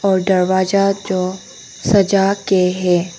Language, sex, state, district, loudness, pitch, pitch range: Hindi, female, Arunachal Pradesh, Longding, -16 LUFS, 185 Hz, 180-195 Hz